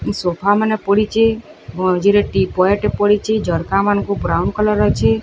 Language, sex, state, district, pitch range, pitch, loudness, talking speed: Odia, female, Odisha, Sambalpur, 185-210 Hz, 205 Hz, -16 LUFS, 135 wpm